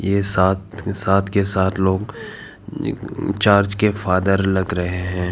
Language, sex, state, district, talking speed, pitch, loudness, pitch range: Hindi, male, Arunachal Pradesh, Papum Pare, 135 wpm, 95 Hz, -19 LUFS, 95-100 Hz